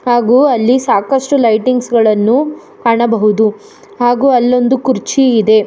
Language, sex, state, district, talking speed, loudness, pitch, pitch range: Kannada, female, Karnataka, Bangalore, 105 wpm, -12 LUFS, 245 Hz, 225-260 Hz